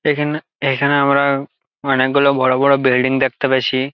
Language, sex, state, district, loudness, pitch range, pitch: Bengali, male, West Bengal, Jalpaiguri, -16 LUFS, 130-140 Hz, 135 Hz